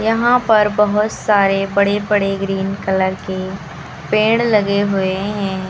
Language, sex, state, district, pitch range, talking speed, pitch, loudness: Hindi, female, Uttar Pradesh, Lucknow, 190-210 Hz, 135 wpm, 200 Hz, -16 LUFS